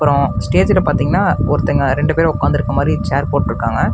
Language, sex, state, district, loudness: Tamil, male, Tamil Nadu, Namakkal, -15 LUFS